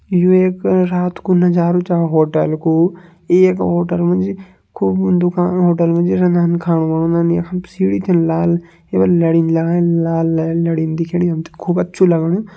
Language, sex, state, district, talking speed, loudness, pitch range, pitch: Kumaoni, male, Uttarakhand, Tehri Garhwal, 160 wpm, -15 LUFS, 165-180 Hz, 170 Hz